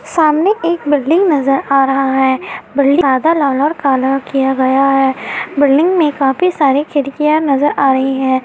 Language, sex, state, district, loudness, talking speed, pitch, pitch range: Hindi, female, Bihar, Kishanganj, -13 LUFS, 155 wpm, 280 Hz, 270-310 Hz